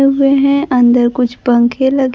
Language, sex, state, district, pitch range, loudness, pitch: Hindi, female, Bihar, Kaimur, 245-275 Hz, -12 LUFS, 255 Hz